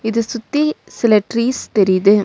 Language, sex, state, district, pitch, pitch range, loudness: Tamil, female, Tamil Nadu, Nilgiris, 230 Hz, 205-240 Hz, -16 LUFS